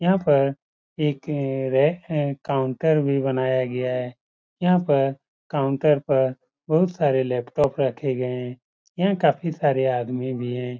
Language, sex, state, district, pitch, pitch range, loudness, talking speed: Hindi, male, Uttar Pradesh, Muzaffarnagar, 135 Hz, 130-150 Hz, -23 LUFS, 140 wpm